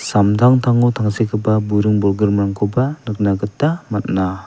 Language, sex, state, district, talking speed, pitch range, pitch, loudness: Garo, male, Meghalaya, West Garo Hills, 95 wpm, 100-120 Hz, 105 Hz, -17 LUFS